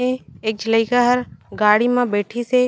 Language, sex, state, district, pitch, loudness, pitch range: Chhattisgarhi, female, Chhattisgarh, Raigarh, 240 Hz, -18 LUFS, 220-250 Hz